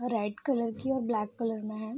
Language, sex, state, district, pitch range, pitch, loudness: Hindi, female, Bihar, Vaishali, 215-255 Hz, 230 Hz, -32 LUFS